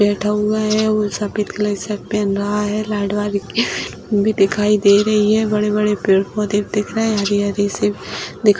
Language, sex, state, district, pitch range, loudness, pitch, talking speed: Hindi, female, Bihar, Jamui, 205-210 Hz, -18 LUFS, 210 Hz, 190 wpm